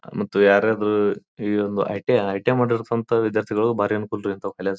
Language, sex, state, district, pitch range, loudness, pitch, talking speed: Kannada, male, Karnataka, Bijapur, 100-110 Hz, -21 LUFS, 105 Hz, 150 wpm